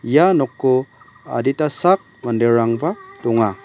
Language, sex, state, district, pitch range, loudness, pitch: Garo, male, Meghalaya, West Garo Hills, 115-155 Hz, -18 LUFS, 130 Hz